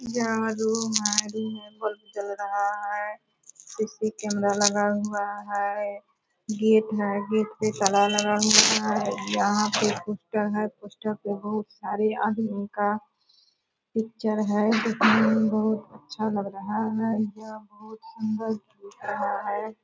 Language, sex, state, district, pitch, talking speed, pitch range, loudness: Hindi, female, Bihar, Purnia, 215 Hz, 140 wpm, 205-220 Hz, -25 LUFS